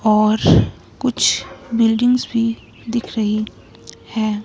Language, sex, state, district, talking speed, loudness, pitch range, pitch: Hindi, female, Himachal Pradesh, Shimla, 95 wpm, -18 LUFS, 215-235 Hz, 225 Hz